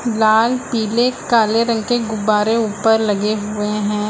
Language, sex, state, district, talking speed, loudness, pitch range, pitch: Hindi, female, Uttar Pradesh, Lucknow, 145 wpm, -17 LUFS, 210-230 Hz, 220 Hz